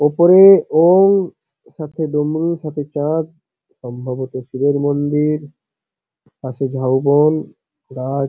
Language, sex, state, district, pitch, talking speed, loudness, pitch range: Bengali, male, West Bengal, Paschim Medinipur, 150 Hz, 85 wpm, -15 LUFS, 135-160 Hz